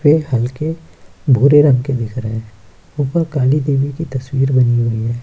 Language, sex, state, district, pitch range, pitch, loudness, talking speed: Hindi, male, Bihar, Kishanganj, 115-145 Hz, 130 Hz, -16 LUFS, 185 wpm